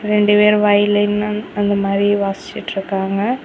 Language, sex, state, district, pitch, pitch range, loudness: Tamil, female, Tamil Nadu, Kanyakumari, 205 Hz, 200-210 Hz, -16 LUFS